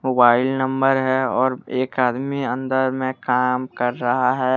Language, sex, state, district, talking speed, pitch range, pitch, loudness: Hindi, male, Jharkhand, Deoghar, 155 wpm, 125-130 Hz, 130 Hz, -20 LUFS